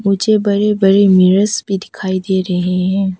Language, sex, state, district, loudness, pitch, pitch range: Hindi, female, Arunachal Pradesh, Papum Pare, -14 LUFS, 195 Hz, 185-205 Hz